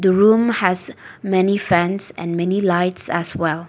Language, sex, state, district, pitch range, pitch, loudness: English, female, Nagaland, Dimapur, 175-195 Hz, 185 Hz, -18 LUFS